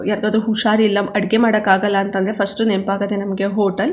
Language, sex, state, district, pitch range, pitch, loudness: Kannada, female, Karnataka, Chamarajanagar, 195-215 Hz, 205 Hz, -17 LUFS